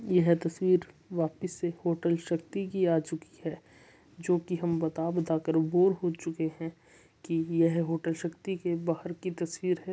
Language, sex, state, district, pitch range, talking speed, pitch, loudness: Marwari, male, Rajasthan, Churu, 165-180 Hz, 175 wpm, 170 Hz, -30 LUFS